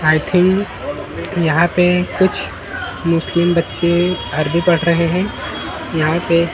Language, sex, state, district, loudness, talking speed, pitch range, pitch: Hindi, male, Maharashtra, Mumbai Suburban, -17 LUFS, 120 wpm, 165-180 Hz, 170 Hz